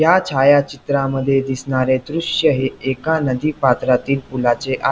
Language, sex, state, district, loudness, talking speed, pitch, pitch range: Marathi, male, Maharashtra, Pune, -17 LUFS, 120 wpm, 135 Hz, 130-145 Hz